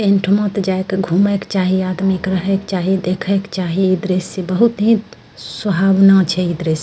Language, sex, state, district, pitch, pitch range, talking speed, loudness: Angika, female, Bihar, Bhagalpur, 190 Hz, 185-200 Hz, 195 wpm, -16 LUFS